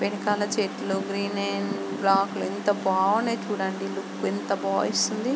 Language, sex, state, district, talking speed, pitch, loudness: Telugu, female, Andhra Pradesh, Guntur, 65 wpm, 190 Hz, -26 LUFS